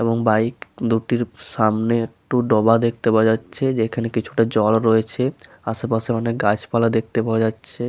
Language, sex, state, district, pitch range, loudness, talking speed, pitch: Bengali, male, West Bengal, Paschim Medinipur, 110-115 Hz, -20 LUFS, 145 wpm, 115 Hz